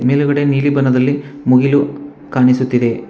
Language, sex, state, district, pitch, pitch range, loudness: Kannada, male, Karnataka, Bangalore, 140 Hz, 125-145 Hz, -14 LUFS